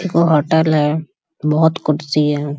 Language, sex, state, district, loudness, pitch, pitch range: Hindi, male, Bihar, Bhagalpur, -16 LUFS, 155 Hz, 150-160 Hz